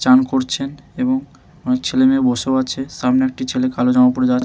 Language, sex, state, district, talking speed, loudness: Bengali, male, West Bengal, Malda, 205 wpm, -17 LUFS